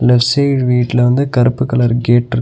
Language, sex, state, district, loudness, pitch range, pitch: Tamil, male, Tamil Nadu, Nilgiris, -13 LUFS, 120-130 Hz, 125 Hz